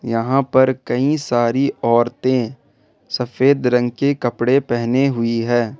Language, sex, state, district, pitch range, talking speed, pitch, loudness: Hindi, male, Jharkhand, Ranchi, 120-135 Hz, 125 wpm, 125 Hz, -18 LUFS